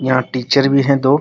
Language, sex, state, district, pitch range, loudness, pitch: Hindi, male, Bihar, Muzaffarpur, 130-140 Hz, -15 LUFS, 135 Hz